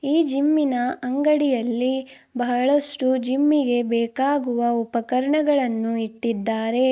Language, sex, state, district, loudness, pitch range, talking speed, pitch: Kannada, female, Karnataka, Bidar, -21 LUFS, 235-285 Hz, 70 wpm, 255 Hz